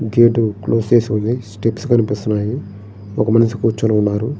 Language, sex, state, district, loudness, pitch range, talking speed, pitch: Telugu, male, Andhra Pradesh, Srikakulam, -17 LUFS, 105-115 Hz, 150 wpm, 110 Hz